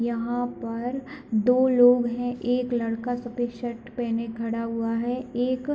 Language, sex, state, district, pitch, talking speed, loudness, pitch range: Hindi, female, Bihar, Supaul, 240 Hz, 155 wpm, -26 LUFS, 230-250 Hz